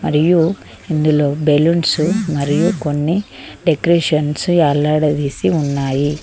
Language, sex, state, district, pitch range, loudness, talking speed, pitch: Telugu, female, Telangana, Mahabubabad, 145-170 Hz, -16 LUFS, 75 wpm, 155 Hz